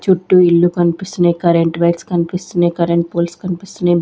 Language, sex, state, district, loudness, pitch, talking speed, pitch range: Telugu, female, Andhra Pradesh, Sri Satya Sai, -15 LUFS, 175 Hz, 135 wpm, 170-180 Hz